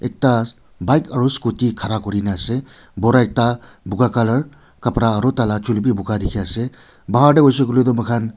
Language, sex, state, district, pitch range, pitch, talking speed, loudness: Nagamese, male, Nagaland, Kohima, 110-125 Hz, 120 Hz, 215 wpm, -17 LUFS